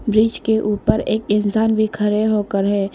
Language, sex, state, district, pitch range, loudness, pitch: Hindi, female, Arunachal Pradesh, Lower Dibang Valley, 205-220 Hz, -18 LUFS, 215 Hz